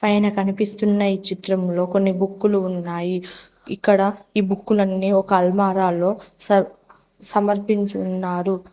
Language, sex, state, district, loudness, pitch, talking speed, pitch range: Telugu, female, Telangana, Mahabubabad, -20 LUFS, 195 Hz, 110 wpm, 185-205 Hz